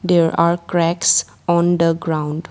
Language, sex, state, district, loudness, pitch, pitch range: English, female, Assam, Kamrup Metropolitan, -17 LUFS, 170 Hz, 165-175 Hz